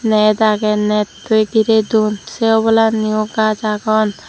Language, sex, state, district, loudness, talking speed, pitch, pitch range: Chakma, female, Tripura, Dhalai, -15 LUFS, 125 wpm, 215 Hz, 215-220 Hz